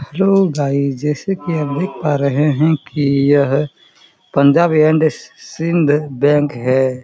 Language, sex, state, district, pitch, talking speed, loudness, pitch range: Hindi, male, Chhattisgarh, Korba, 145 Hz, 135 wpm, -15 LUFS, 140-160 Hz